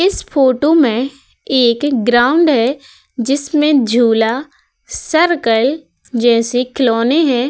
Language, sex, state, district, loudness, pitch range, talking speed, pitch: Hindi, female, Uttar Pradesh, Hamirpur, -14 LUFS, 240-295 Hz, 95 wpm, 265 Hz